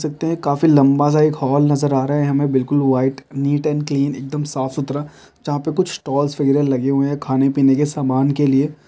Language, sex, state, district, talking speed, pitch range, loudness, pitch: Hindi, male, Chhattisgarh, Balrampur, 235 wpm, 135-145 Hz, -18 LUFS, 145 Hz